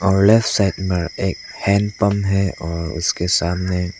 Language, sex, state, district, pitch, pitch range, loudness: Hindi, male, Arunachal Pradesh, Lower Dibang Valley, 95 Hz, 90-100 Hz, -19 LUFS